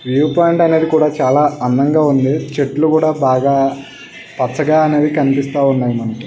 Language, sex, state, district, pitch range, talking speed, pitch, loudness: Telugu, male, Karnataka, Bellary, 135-155 Hz, 105 wpm, 140 Hz, -14 LUFS